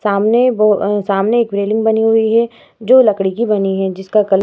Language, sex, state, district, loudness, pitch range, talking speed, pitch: Hindi, female, Bihar, Vaishali, -14 LUFS, 200-225 Hz, 215 wpm, 210 Hz